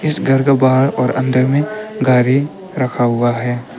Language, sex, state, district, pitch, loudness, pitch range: Hindi, male, Arunachal Pradesh, Papum Pare, 130 Hz, -15 LUFS, 125-145 Hz